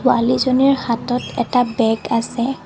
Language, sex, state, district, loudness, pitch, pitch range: Assamese, female, Assam, Kamrup Metropolitan, -18 LUFS, 245 Hz, 235-255 Hz